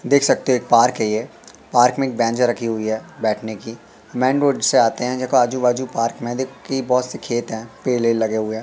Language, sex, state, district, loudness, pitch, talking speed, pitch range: Hindi, male, Madhya Pradesh, Katni, -19 LUFS, 120 Hz, 250 wpm, 115-130 Hz